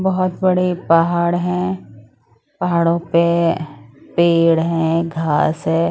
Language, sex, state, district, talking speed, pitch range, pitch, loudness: Hindi, female, Odisha, Sambalpur, 100 wpm, 155-170 Hz, 165 Hz, -17 LUFS